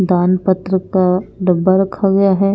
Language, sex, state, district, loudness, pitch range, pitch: Hindi, female, Punjab, Pathankot, -15 LUFS, 185-195 Hz, 185 Hz